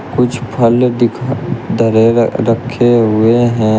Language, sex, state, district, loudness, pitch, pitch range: Hindi, male, Uttar Pradesh, Shamli, -12 LUFS, 120 Hz, 115-125 Hz